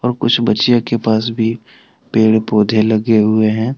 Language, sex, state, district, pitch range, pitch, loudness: Hindi, male, Jharkhand, Deoghar, 110-115 Hz, 110 Hz, -14 LUFS